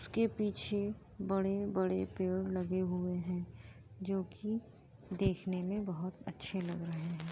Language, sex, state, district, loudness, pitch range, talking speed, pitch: Hindi, female, Bihar, Muzaffarpur, -37 LUFS, 175-200 Hz, 140 wpm, 185 Hz